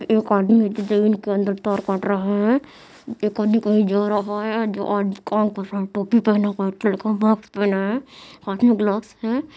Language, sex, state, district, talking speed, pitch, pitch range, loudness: Hindi, female, Bihar, Madhepura, 190 wpm, 210 Hz, 200-220 Hz, -20 LUFS